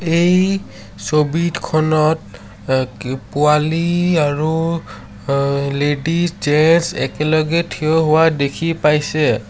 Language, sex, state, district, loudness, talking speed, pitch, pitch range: Assamese, male, Assam, Sonitpur, -17 LUFS, 90 wpm, 155 Hz, 140-165 Hz